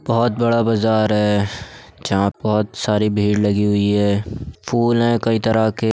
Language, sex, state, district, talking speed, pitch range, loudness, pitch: Hindi, male, Uttar Pradesh, Budaun, 170 wpm, 105-115 Hz, -18 LUFS, 110 Hz